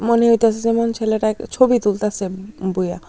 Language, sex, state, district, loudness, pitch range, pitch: Bengali, female, Tripura, Unakoti, -18 LUFS, 200-230 Hz, 220 Hz